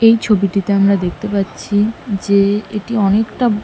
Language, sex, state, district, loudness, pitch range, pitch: Bengali, female, West Bengal, North 24 Parganas, -16 LUFS, 200-215 Hz, 205 Hz